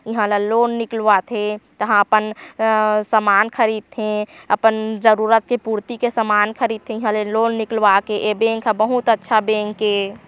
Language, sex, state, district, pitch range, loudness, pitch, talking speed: Chhattisgarhi, female, Chhattisgarh, Korba, 210-225 Hz, -18 LUFS, 220 Hz, 160 wpm